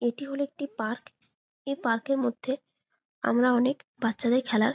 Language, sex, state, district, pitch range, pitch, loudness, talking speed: Bengali, female, West Bengal, Malda, 235-275 Hz, 255 Hz, -28 LUFS, 150 wpm